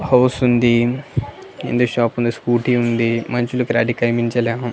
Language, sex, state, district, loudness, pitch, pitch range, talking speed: Telugu, male, Andhra Pradesh, Annamaya, -18 LUFS, 120 Hz, 120-125 Hz, 125 wpm